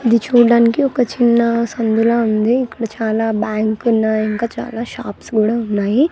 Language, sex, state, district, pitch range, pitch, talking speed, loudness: Telugu, female, Andhra Pradesh, Manyam, 220-240 Hz, 230 Hz, 145 wpm, -16 LUFS